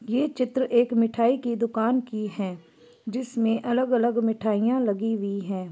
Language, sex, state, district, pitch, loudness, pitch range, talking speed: Hindi, female, Chhattisgarh, Bastar, 230 Hz, -25 LUFS, 215-245 Hz, 155 wpm